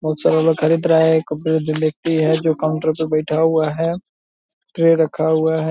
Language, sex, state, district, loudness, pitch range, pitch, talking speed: Hindi, male, Bihar, Purnia, -17 LUFS, 155-160 Hz, 160 Hz, 220 wpm